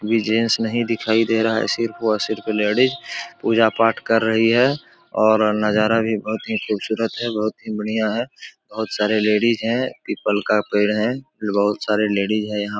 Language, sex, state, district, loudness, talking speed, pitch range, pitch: Hindi, male, Bihar, Supaul, -20 LUFS, 195 wpm, 105-115 Hz, 110 Hz